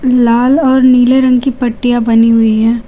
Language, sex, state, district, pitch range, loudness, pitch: Hindi, female, Jharkhand, Garhwa, 230-260 Hz, -9 LUFS, 245 Hz